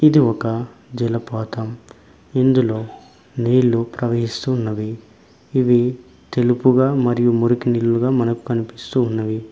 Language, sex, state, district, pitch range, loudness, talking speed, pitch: Telugu, male, Telangana, Mahabubabad, 115-125 Hz, -19 LUFS, 90 wpm, 120 Hz